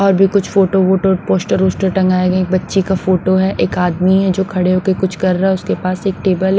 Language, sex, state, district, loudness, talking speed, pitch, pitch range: Hindi, female, Punjab, Pathankot, -14 LUFS, 265 wpm, 190 Hz, 185-190 Hz